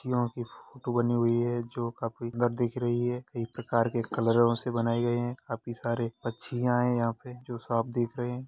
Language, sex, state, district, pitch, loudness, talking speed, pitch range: Hindi, male, Uttar Pradesh, Hamirpur, 120 Hz, -30 LUFS, 210 wpm, 115-120 Hz